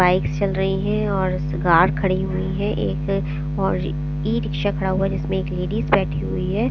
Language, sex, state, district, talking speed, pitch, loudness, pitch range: Hindi, female, Bihar, Patna, 190 wpm, 180 Hz, -21 LUFS, 150-190 Hz